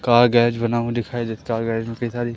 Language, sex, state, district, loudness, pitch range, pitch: Hindi, male, Madhya Pradesh, Umaria, -21 LUFS, 115-120 Hz, 120 Hz